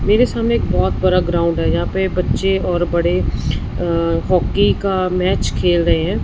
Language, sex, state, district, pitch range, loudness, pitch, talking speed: Hindi, female, Punjab, Fazilka, 115-185 Hz, -17 LUFS, 175 Hz, 185 wpm